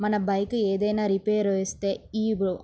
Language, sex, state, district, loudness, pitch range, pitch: Telugu, female, Andhra Pradesh, Srikakulam, -26 LUFS, 195-210 Hz, 205 Hz